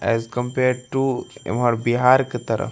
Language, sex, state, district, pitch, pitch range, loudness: Maithili, male, Bihar, Darbhanga, 125 Hz, 115-130 Hz, -21 LUFS